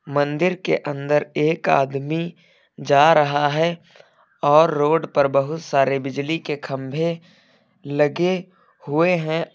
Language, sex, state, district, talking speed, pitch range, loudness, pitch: Hindi, male, Uttar Pradesh, Lucknow, 120 wpm, 145-170 Hz, -20 LUFS, 155 Hz